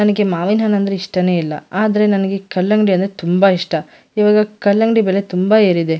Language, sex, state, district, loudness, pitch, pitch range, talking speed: Kannada, female, Karnataka, Mysore, -15 LUFS, 195 Hz, 180-210 Hz, 160 wpm